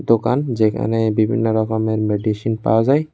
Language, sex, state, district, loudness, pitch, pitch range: Bengali, male, Tripura, West Tripura, -18 LUFS, 110 Hz, 110-115 Hz